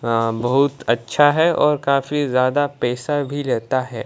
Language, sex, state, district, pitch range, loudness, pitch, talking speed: Hindi, female, Odisha, Malkangiri, 120-145 Hz, -19 LUFS, 140 Hz, 160 wpm